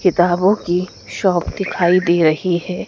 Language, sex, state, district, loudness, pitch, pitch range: Hindi, female, Madhya Pradesh, Dhar, -17 LUFS, 180 Hz, 175-185 Hz